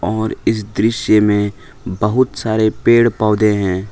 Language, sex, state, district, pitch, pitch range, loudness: Hindi, male, Jharkhand, Palamu, 110 Hz, 105-110 Hz, -15 LUFS